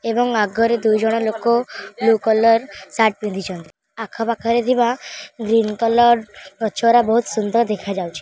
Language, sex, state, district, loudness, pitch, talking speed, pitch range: Odia, female, Odisha, Khordha, -18 LUFS, 225 Hz, 140 wpm, 210-235 Hz